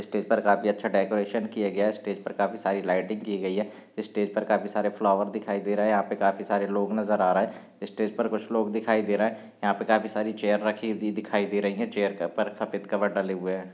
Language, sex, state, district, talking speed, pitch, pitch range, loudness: Hindi, male, Bihar, Lakhisarai, 265 wpm, 105 Hz, 100-110 Hz, -27 LUFS